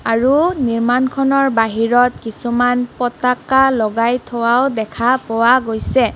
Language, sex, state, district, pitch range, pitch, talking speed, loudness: Assamese, female, Assam, Kamrup Metropolitan, 230-260 Hz, 245 Hz, 95 wpm, -15 LUFS